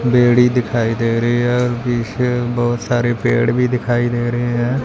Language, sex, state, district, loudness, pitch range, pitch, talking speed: Hindi, male, Punjab, Fazilka, -16 LUFS, 120-125 Hz, 120 Hz, 185 wpm